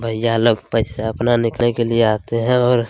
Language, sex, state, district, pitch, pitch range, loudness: Hindi, male, Chhattisgarh, Kabirdham, 115 Hz, 115-120 Hz, -18 LUFS